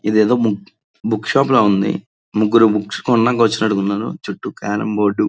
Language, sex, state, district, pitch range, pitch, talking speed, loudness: Telugu, male, Andhra Pradesh, Srikakulam, 105-115 Hz, 105 Hz, 170 wpm, -17 LUFS